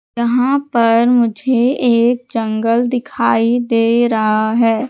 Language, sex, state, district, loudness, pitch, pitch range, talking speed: Hindi, female, Madhya Pradesh, Katni, -14 LUFS, 235 Hz, 230-245 Hz, 110 wpm